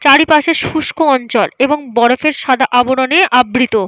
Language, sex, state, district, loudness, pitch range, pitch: Bengali, female, Jharkhand, Jamtara, -12 LUFS, 250-305 Hz, 265 Hz